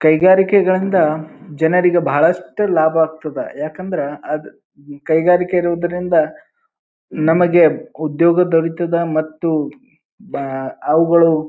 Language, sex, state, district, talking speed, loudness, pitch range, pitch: Kannada, male, Karnataka, Bijapur, 80 wpm, -16 LUFS, 155-180 Hz, 165 Hz